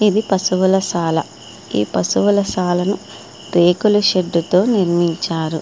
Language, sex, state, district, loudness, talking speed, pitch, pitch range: Telugu, female, Andhra Pradesh, Srikakulam, -17 LUFS, 85 wpm, 185 Hz, 170-200 Hz